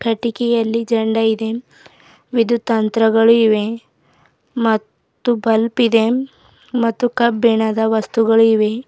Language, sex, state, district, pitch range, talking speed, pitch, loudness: Kannada, female, Karnataka, Bidar, 220-235 Hz, 90 wpm, 230 Hz, -16 LUFS